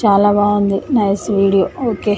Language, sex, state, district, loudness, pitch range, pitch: Telugu, female, Telangana, Nalgonda, -15 LUFS, 195-210 Hz, 205 Hz